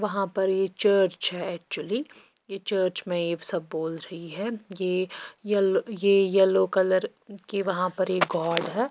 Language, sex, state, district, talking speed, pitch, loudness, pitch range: Hindi, female, Bihar, Patna, 170 wpm, 190 Hz, -26 LUFS, 180-200 Hz